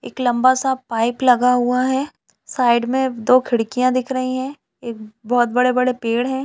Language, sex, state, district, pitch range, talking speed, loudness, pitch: Hindi, female, Chhattisgarh, Balrampur, 240-260 Hz, 185 wpm, -18 LUFS, 250 Hz